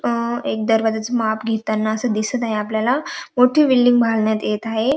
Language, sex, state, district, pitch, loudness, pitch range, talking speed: Marathi, female, Maharashtra, Dhule, 225 Hz, -19 LUFS, 220-245 Hz, 170 wpm